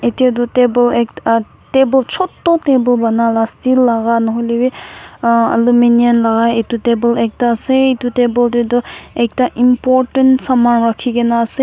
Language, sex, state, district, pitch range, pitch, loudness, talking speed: Nagamese, female, Nagaland, Kohima, 235-255 Hz, 240 Hz, -13 LUFS, 145 wpm